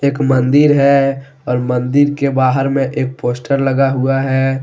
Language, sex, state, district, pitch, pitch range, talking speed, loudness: Hindi, male, Jharkhand, Deoghar, 135 Hz, 130-140 Hz, 170 wpm, -14 LUFS